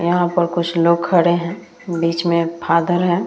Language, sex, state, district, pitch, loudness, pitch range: Hindi, female, Bihar, Vaishali, 170 Hz, -17 LUFS, 170-175 Hz